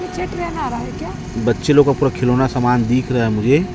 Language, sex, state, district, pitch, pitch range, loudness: Hindi, male, Chhattisgarh, Raipur, 130 Hz, 125-145 Hz, -17 LUFS